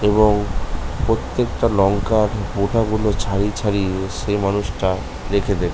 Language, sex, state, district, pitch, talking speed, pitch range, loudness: Bengali, male, West Bengal, North 24 Parganas, 100 Hz, 115 wpm, 95-105 Hz, -20 LUFS